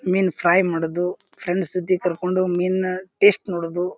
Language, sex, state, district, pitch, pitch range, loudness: Kannada, male, Karnataka, Bijapur, 180 Hz, 175-185 Hz, -21 LUFS